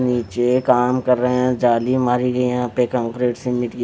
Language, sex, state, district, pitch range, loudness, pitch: Hindi, male, Delhi, New Delhi, 120-125 Hz, -18 LUFS, 125 Hz